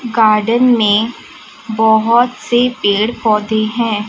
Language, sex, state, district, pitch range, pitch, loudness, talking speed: Hindi, female, Chhattisgarh, Raipur, 215-240 Hz, 225 Hz, -13 LUFS, 105 wpm